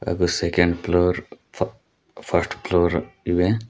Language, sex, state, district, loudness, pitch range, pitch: Kannada, male, Karnataka, Koppal, -22 LUFS, 85-90 Hz, 90 Hz